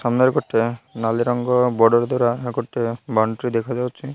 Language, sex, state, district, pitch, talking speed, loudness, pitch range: Odia, male, Odisha, Malkangiri, 120 Hz, 145 wpm, -20 LUFS, 115-125 Hz